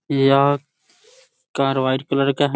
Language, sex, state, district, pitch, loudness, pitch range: Hindi, male, Bihar, Begusarai, 140 Hz, -19 LUFS, 135-210 Hz